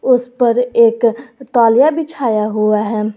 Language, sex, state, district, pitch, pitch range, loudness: Hindi, female, Jharkhand, Garhwa, 235 Hz, 215-255 Hz, -14 LUFS